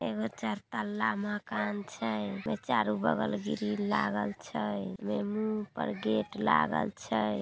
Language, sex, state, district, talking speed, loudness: Maithili, female, Bihar, Samastipur, 130 wpm, -32 LUFS